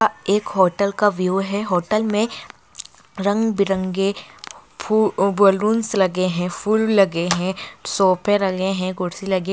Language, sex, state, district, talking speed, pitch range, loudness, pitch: Hindi, female, Bihar, Bhagalpur, 140 wpm, 185-210 Hz, -20 LUFS, 195 Hz